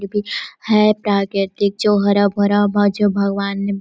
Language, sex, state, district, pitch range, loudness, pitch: Hindi, female, Chhattisgarh, Korba, 200-205 Hz, -17 LUFS, 200 Hz